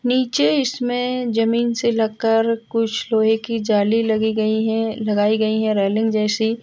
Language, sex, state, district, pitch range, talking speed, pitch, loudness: Hindi, female, Bihar, Lakhisarai, 220-230 Hz, 155 wpm, 225 Hz, -19 LUFS